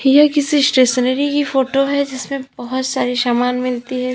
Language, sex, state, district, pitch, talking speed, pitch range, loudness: Hindi, female, Uttar Pradesh, Lalitpur, 260 Hz, 175 wpm, 250-280 Hz, -16 LUFS